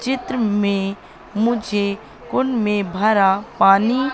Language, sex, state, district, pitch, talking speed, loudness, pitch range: Hindi, female, Madhya Pradesh, Katni, 215 Hz, 100 wpm, -19 LUFS, 200-235 Hz